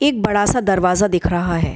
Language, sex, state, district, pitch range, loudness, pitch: Hindi, female, Bihar, Kishanganj, 180-210 Hz, -17 LUFS, 205 Hz